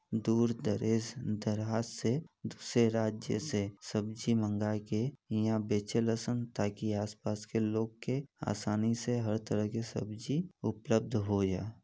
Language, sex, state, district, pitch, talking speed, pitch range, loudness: Bhojpuri, male, Uttar Pradesh, Deoria, 110 Hz, 130 wpm, 105-115 Hz, -34 LUFS